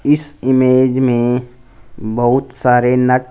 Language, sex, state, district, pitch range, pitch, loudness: Hindi, male, Punjab, Fazilka, 125-130 Hz, 125 Hz, -14 LUFS